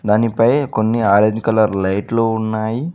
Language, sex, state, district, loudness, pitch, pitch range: Telugu, male, Telangana, Mahabubabad, -16 LUFS, 110 Hz, 105-115 Hz